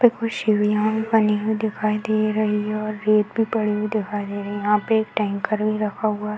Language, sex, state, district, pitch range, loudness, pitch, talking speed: Hindi, female, Uttar Pradesh, Varanasi, 210-220 Hz, -22 LUFS, 215 Hz, 245 wpm